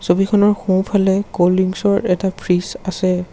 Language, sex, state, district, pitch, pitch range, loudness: Assamese, male, Assam, Sonitpur, 190 Hz, 180-200 Hz, -17 LUFS